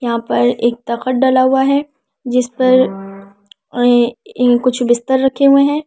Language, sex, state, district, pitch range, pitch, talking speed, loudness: Hindi, female, Delhi, New Delhi, 240-265 Hz, 250 Hz, 145 wpm, -14 LUFS